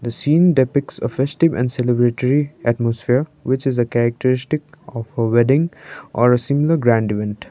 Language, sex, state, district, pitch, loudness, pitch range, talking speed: English, male, Sikkim, Gangtok, 125 Hz, -18 LUFS, 120-145 Hz, 160 wpm